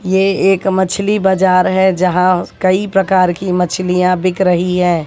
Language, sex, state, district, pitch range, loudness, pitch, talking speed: Hindi, female, Haryana, Jhajjar, 180-190 Hz, -13 LUFS, 185 Hz, 155 wpm